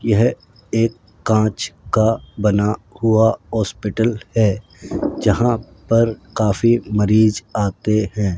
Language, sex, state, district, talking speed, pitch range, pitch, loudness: Hindi, male, Rajasthan, Jaipur, 100 wpm, 105-115 Hz, 110 Hz, -18 LUFS